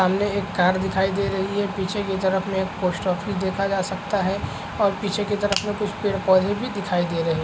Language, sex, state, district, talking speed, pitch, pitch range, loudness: Hindi, male, Maharashtra, Chandrapur, 250 wpm, 195 Hz, 190-205 Hz, -23 LUFS